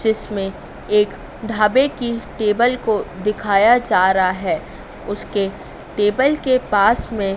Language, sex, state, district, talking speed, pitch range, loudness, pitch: Hindi, female, Madhya Pradesh, Dhar, 120 wpm, 200-240 Hz, -18 LUFS, 210 Hz